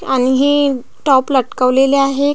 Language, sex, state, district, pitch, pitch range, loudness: Marathi, female, Maharashtra, Pune, 270 Hz, 260-280 Hz, -14 LUFS